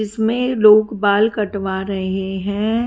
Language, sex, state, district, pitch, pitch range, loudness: Hindi, female, Haryana, Charkhi Dadri, 210 Hz, 195-220 Hz, -17 LUFS